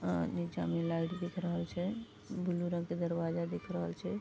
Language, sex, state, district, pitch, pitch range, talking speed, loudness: Maithili, female, Bihar, Vaishali, 170 Hz, 165-175 Hz, 200 wpm, -37 LUFS